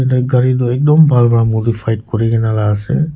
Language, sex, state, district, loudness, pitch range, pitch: Nagamese, male, Nagaland, Kohima, -13 LUFS, 110-130 Hz, 120 Hz